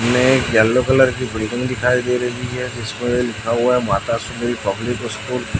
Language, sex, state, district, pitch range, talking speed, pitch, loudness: Hindi, male, Chhattisgarh, Raipur, 115-125 Hz, 195 wpm, 120 Hz, -18 LUFS